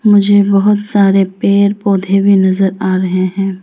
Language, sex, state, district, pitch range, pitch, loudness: Hindi, female, Arunachal Pradesh, Lower Dibang Valley, 190-200 Hz, 195 Hz, -11 LUFS